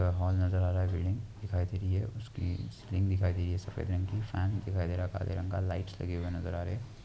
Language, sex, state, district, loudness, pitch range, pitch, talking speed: Hindi, male, West Bengal, Jalpaiguri, -34 LUFS, 90-100 Hz, 95 Hz, 290 wpm